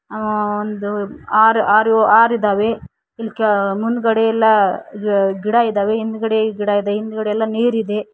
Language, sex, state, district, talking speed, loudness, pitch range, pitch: Kannada, female, Karnataka, Koppal, 140 wpm, -16 LUFS, 205-225 Hz, 215 Hz